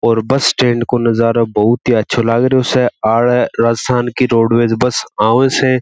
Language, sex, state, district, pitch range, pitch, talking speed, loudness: Marwari, male, Rajasthan, Churu, 115-125 Hz, 120 Hz, 175 wpm, -13 LUFS